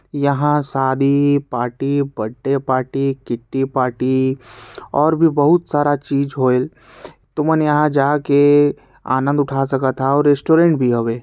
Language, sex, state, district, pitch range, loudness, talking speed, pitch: Chhattisgarhi, male, Chhattisgarh, Sarguja, 130-145 Hz, -17 LUFS, 130 wpm, 140 Hz